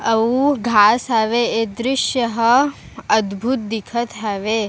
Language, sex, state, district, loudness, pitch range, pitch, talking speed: Chhattisgarhi, female, Chhattisgarh, Raigarh, -18 LUFS, 220-245 Hz, 230 Hz, 115 wpm